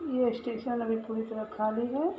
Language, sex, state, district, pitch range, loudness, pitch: Hindi, female, Uttar Pradesh, Gorakhpur, 225-250 Hz, -32 LUFS, 235 Hz